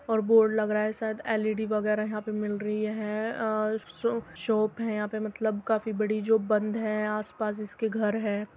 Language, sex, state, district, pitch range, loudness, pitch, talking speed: Hindi, female, Uttar Pradesh, Muzaffarnagar, 210-220 Hz, -28 LUFS, 215 Hz, 205 wpm